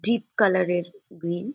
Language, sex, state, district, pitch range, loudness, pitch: Bengali, female, West Bengal, Jalpaiguri, 175-215 Hz, -24 LUFS, 190 Hz